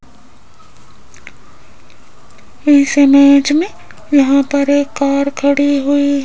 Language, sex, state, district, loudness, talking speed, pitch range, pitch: Hindi, female, Rajasthan, Jaipur, -12 LUFS, 95 wpm, 280-285 Hz, 280 Hz